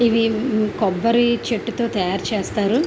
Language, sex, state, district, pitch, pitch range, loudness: Telugu, female, Andhra Pradesh, Visakhapatnam, 230 Hz, 210-235 Hz, -20 LUFS